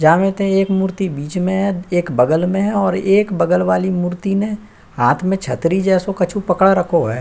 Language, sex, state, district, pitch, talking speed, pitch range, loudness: Hindi, male, Uttar Pradesh, Budaun, 185 Hz, 215 wpm, 170-195 Hz, -17 LUFS